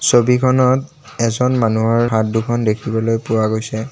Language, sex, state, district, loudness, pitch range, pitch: Assamese, male, Assam, Kamrup Metropolitan, -16 LUFS, 110-125 Hz, 115 Hz